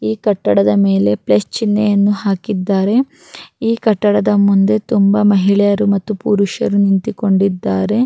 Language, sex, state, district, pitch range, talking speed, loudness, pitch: Kannada, female, Karnataka, Raichur, 195-210 Hz, 105 wpm, -14 LUFS, 200 Hz